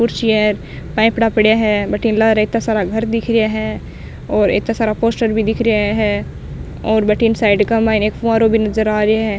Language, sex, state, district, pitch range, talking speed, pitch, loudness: Rajasthani, female, Rajasthan, Nagaur, 215-225 Hz, 210 wpm, 220 Hz, -15 LUFS